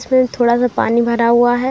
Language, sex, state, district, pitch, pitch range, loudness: Hindi, female, Bihar, Saran, 240 Hz, 235-250 Hz, -14 LUFS